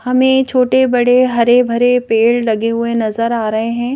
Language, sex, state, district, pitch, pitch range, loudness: Hindi, female, Madhya Pradesh, Bhopal, 240 Hz, 230-250 Hz, -13 LUFS